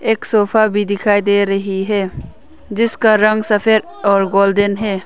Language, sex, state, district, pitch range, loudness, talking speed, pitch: Hindi, female, Arunachal Pradesh, Longding, 200-215 Hz, -15 LUFS, 155 wpm, 205 Hz